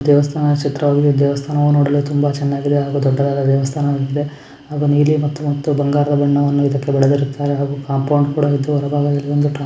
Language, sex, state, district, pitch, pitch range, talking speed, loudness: Kannada, male, Karnataka, Dharwad, 145 Hz, 140-145 Hz, 135 wpm, -16 LUFS